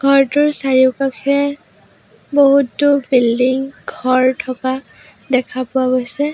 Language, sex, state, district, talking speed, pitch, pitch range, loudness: Assamese, female, Assam, Sonitpur, 85 wpm, 265 Hz, 255-280 Hz, -15 LUFS